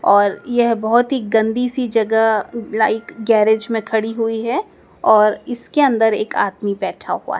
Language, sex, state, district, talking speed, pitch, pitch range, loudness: Hindi, female, Madhya Pradesh, Dhar, 170 wpm, 225 Hz, 215-235 Hz, -17 LUFS